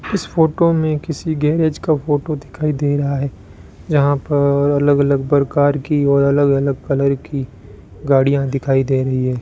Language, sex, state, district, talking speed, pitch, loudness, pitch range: Hindi, male, Rajasthan, Bikaner, 170 wpm, 140 Hz, -17 LUFS, 135-150 Hz